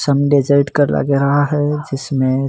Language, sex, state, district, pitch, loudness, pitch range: Hindi, male, Rajasthan, Jaisalmer, 140 Hz, -15 LUFS, 135-145 Hz